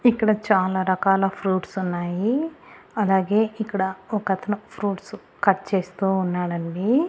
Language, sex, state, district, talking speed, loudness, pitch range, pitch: Telugu, female, Andhra Pradesh, Annamaya, 100 wpm, -23 LUFS, 190-215 Hz, 195 Hz